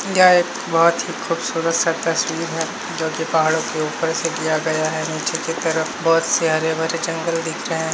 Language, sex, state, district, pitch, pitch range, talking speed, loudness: Hindi, male, Uttar Pradesh, Hamirpur, 165 Hz, 160-165 Hz, 205 wpm, -19 LUFS